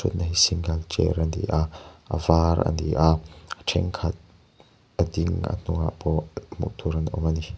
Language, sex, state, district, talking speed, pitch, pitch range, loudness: Mizo, male, Mizoram, Aizawl, 190 wpm, 85 Hz, 80-90 Hz, -25 LUFS